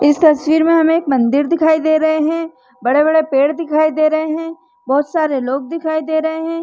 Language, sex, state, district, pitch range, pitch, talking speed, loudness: Hindi, female, Chhattisgarh, Rajnandgaon, 290-320 Hz, 315 Hz, 215 wpm, -15 LUFS